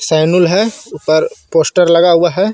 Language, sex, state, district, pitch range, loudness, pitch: Hindi, male, Jharkhand, Garhwa, 170-200 Hz, -12 LUFS, 175 Hz